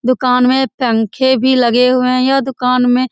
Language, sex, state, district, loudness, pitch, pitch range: Hindi, female, Bihar, Lakhisarai, -13 LUFS, 255 Hz, 250-260 Hz